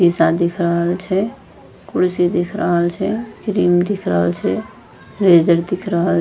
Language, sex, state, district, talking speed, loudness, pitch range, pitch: Angika, female, Bihar, Bhagalpur, 155 wpm, -17 LUFS, 170-190 Hz, 175 Hz